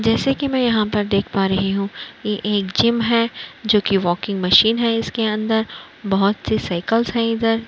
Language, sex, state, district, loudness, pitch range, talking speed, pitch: Hindi, female, Uttar Pradesh, Budaun, -19 LUFS, 195-230 Hz, 205 wpm, 215 Hz